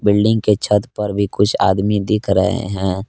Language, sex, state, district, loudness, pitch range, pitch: Hindi, male, Jharkhand, Palamu, -17 LUFS, 95-105 Hz, 105 Hz